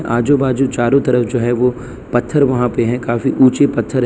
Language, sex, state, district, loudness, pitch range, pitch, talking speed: Hindi, male, Gujarat, Valsad, -15 LUFS, 120-135 Hz, 125 Hz, 205 wpm